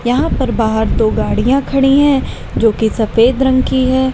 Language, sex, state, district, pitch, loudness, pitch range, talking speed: Hindi, female, Uttar Pradesh, Lalitpur, 255 Hz, -13 LUFS, 225-265 Hz, 190 wpm